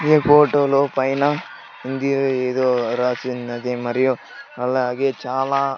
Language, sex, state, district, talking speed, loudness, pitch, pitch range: Telugu, male, Andhra Pradesh, Sri Satya Sai, 95 wpm, -20 LUFS, 130 Hz, 125-140 Hz